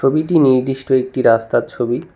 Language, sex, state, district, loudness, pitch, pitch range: Bengali, male, West Bengal, Cooch Behar, -16 LUFS, 130 Hz, 120-135 Hz